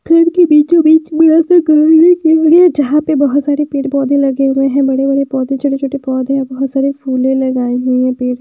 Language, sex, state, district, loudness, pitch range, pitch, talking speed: Hindi, female, Bihar, West Champaran, -11 LUFS, 270-315 Hz, 275 Hz, 195 wpm